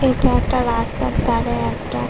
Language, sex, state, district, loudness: Bengali, female, West Bengal, Dakshin Dinajpur, -19 LUFS